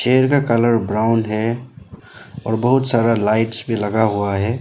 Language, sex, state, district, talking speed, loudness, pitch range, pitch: Hindi, male, Arunachal Pradesh, Lower Dibang Valley, 155 wpm, -17 LUFS, 110-125 Hz, 115 Hz